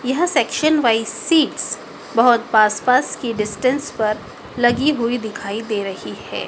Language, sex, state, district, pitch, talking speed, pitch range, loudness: Hindi, female, Madhya Pradesh, Dhar, 235 Hz, 150 wpm, 215-255 Hz, -18 LUFS